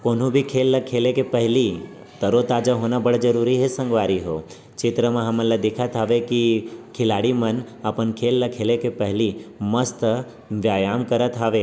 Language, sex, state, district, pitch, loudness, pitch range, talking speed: Chhattisgarhi, male, Chhattisgarh, Raigarh, 120 Hz, -21 LUFS, 110-125 Hz, 180 wpm